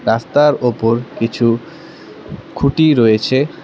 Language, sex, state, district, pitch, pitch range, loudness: Bengali, male, West Bengal, Cooch Behar, 125 Hz, 115-150 Hz, -14 LUFS